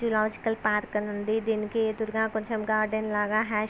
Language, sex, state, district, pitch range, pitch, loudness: Telugu, female, Andhra Pradesh, Visakhapatnam, 210-220 Hz, 215 Hz, -28 LUFS